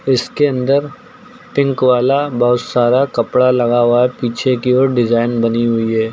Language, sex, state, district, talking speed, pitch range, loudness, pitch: Hindi, male, Uttar Pradesh, Lucknow, 155 wpm, 120-135 Hz, -14 LUFS, 125 Hz